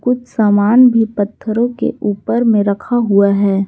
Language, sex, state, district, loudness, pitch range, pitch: Hindi, female, Jharkhand, Garhwa, -14 LUFS, 200-240 Hz, 215 Hz